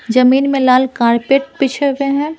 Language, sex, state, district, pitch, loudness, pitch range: Hindi, female, Bihar, Patna, 270 Hz, -13 LUFS, 255-275 Hz